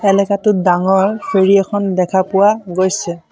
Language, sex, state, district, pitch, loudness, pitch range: Assamese, male, Assam, Sonitpur, 195 Hz, -14 LUFS, 185-200 Hz